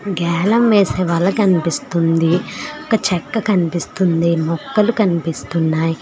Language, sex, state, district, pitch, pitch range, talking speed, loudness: Telugu, female, Telangana, Hyderabad, 180 Hz, 165-210 Hz, 90 wpm, -17 LUFS